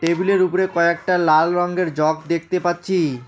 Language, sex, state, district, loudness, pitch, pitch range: Bengali, male, West Bengal, Alipurduar, -19 LUFS, 175 Hz, 160-180 Hz